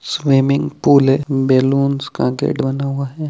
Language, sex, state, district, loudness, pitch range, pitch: Hindi, male, Chhattisgarh, Bilaspur, -16 LUFS, 135-140 Hz, 140 Hz